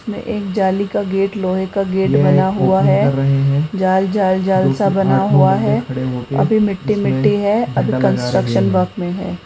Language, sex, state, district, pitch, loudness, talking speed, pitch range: Hindi, female, Rajasthan, Jaipur, 185 Hz, -16 LUFS, 150 wpm, 140-195 Hz